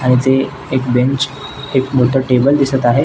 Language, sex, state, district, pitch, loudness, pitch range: Marathi, male, Maharashtra, Nagpur, 130 Hz, -14 LUFS, 125-135 Hz